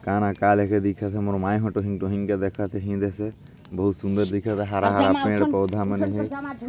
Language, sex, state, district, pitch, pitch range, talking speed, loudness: Chhattisgarhi, male, Chhattisgarh, Jashpur, 100 Hz, 100-105 Hz, 100 wpm, -24 LUFS